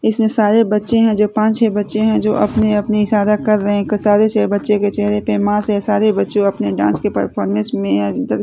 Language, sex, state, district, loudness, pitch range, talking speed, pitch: Hindi, female, Chhattisgarh, Raipur, -15 LUFS, 205-215 Hz, 220 wpm, 210 Hz